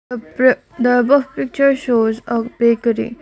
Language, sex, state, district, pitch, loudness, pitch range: English, female, Assam, Kamrup Metropolitan, 245 Hz, -16 LUFS, 235-265 Hz